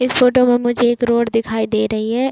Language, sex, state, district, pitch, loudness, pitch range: Hindi, female, Chhattisgarh, Bilaspur, 240 Hz, -16 LUFS, 225-250 Hz